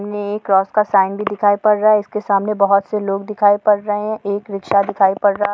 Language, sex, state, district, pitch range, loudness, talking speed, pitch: Hindi, female, Jharkhand, Sahebganj, 200-210 Hz, -16 LUFS, 270 wpm, 205 Hz